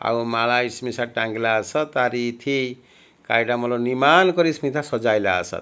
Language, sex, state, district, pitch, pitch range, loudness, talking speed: Odia, male, Odisha, Malkangiri, 120 Hz, 115-135 Hz, -21 LUFS, 160 wpm